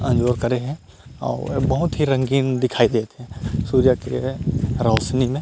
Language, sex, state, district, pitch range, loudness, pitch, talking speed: Chhattisgarhi, male, Chhattisgarh, Rajnandgaon, 120-135 Hz, -21 LUFS, 130 Hz, 155 wpm